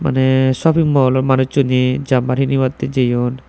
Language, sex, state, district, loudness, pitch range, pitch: Chakma, male, Tripura, Dhalai, -15 LUFS, 130-135 Hz, 130 Hz